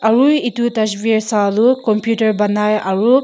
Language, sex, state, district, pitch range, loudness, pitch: Nagamese, female, Nagaland, Kohima, 210-240 Hz, -15 LUFS, 220 Hz